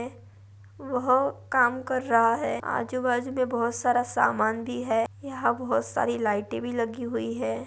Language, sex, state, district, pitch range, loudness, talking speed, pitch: Hindi, female, Maharashtra, Nagpur, 220-250 Hz, -26 LUFS, 155 wpm, 240 Hz